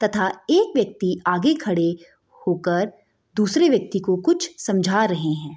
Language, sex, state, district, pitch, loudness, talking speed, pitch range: Hindi, female, Bihar, Madhepura, 190 Hz, -21 LUFS, 150 wpm, 175-220 Hz